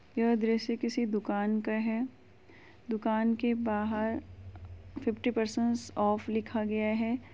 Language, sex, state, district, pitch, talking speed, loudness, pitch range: Hindi, female, Uttar Pradesh, Muzaffarnagar, 225 Hz, 125 wpm, -31 LUFS, 215-235 Hz